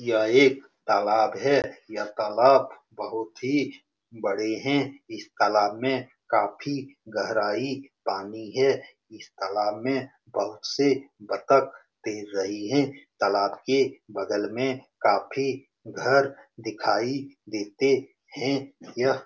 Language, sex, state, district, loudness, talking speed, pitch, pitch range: Hindi, male, Bihar, Saran, -26 LUFS, 115 wpm, 135 Hz, 105-135 Hz